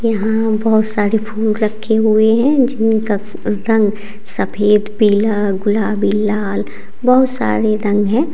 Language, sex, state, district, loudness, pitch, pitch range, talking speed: Hindi, female, Uttar Pradesh, Lalitpur, -15 LUFS, 215 Hz, 205-220 Hz, 120 wpm